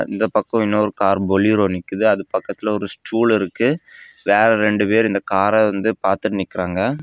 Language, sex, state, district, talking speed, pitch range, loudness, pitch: Tamil, male, Tamil Nadu, Kanyakumari, 160 wpm, 95-110 Hz, -18 LUFS, 105 Hz